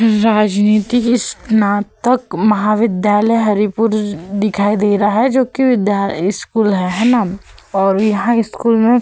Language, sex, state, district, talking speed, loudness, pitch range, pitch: Hindi, female, Uttar Pradesh, Hamirpur, 125 wpm, -14 LUFS, 205-230 Hz, 215 Hz